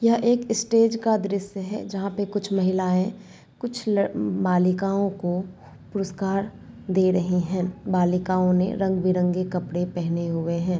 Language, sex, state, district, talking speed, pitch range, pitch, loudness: Hindi, female, Bihar, Saran, 135 wpm, 180-200 Hz, 190 Hz, -24 LUFS